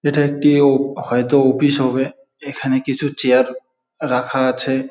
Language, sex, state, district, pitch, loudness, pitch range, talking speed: Bengali, male, West Bengal, Jalpaiguri, 135 Hz, -17 LUFS, 130-145 Hz, 135 wpm